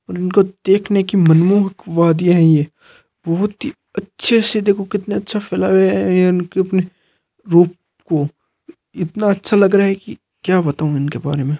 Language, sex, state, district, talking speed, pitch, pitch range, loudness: Hindi, male, Rajasthan, Nagaur, 165 wpm, 185 Hz, 165-200 Hz, -16 LUFS